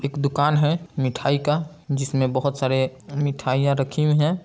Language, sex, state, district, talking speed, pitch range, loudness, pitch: Hindi, male, Bihar, Saran, 160 wpm, 135-150 Hz, -22 LUFS, 140 Hz